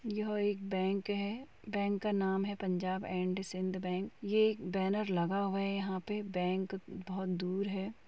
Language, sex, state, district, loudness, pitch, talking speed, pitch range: Hindi, female, Uttar Pradesh, Muzaffarnagar, -35 LUFS, 195 Hz, 180 wpm, 185-205 Hz